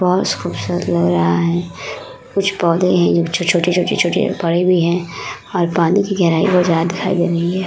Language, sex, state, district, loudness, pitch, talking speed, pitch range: Hindi, female, Uttar Pradesh, Muzaffarnagar, -16 LUFS, 175 Hz, 180 wpm, 170-185 Hz